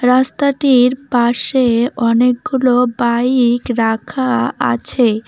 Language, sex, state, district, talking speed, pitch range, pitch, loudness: Bengali, female, West Bengal, Cooch Behar, 70 wpm, 235-255 Hz, 245 Hz, -14 LUFS